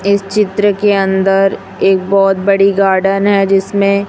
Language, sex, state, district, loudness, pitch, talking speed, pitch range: Hindi, female, Chhattisgarh, Raipur, -12 LUFS, 195 Hz, 145 wpm, 195-200 Hz